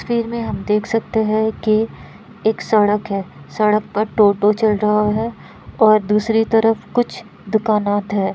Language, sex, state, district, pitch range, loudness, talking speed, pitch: Hindi, female, Bihar, Kishanganj, 210-220 Hz, -17 LUFS, 165 wpm, 215 Hz